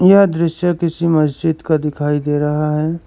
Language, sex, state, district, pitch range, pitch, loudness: Hindi, male, Karnataka, Bangalore, 150-170 Hz, 160 Hz, -16 LUFS